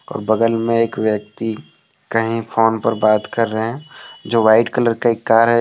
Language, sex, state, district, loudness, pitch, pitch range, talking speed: Hindi, male, Jharkhand, Deoghar, -17 LUFS, 115 Hz, 110-115 Hz, 205 wpm